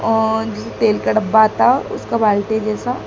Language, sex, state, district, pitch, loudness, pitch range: Hindi, female, Madhya Pradesh, Dhar, 220 Hz, -16 LUFS, 215-225 Hz